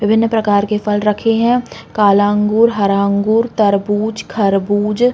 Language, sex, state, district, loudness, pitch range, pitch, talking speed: Hindi, female, Uttar Pradesh, Varanasi, -14 LUFS, 205-225 Hz, 210 Hz, 150 wpm